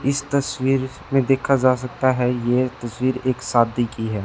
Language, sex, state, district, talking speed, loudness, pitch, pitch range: Hindi, male, Haryana, Charkhi Dadri, 185 wpm, -21 LUFS, 130 Hz, 120-135 Hz